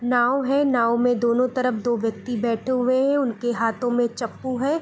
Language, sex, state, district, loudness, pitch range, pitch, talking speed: Hindi, female, Bihar, Gopalganj, -22 LUFS, 235-255 Hz, 245 Hz, 225 wpm